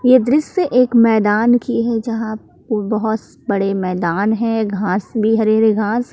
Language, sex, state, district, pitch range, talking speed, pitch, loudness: Hindi, female, Jharkhand, Palamu, 210-235 Hz, 155 wpm, 220 Hz, -16 LUFS